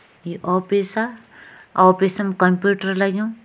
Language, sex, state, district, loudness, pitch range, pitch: Kumaoni, female, Uttarakhand, Tehri Garhwal, -19 LUFS, 185-205 Hz, 195 Hz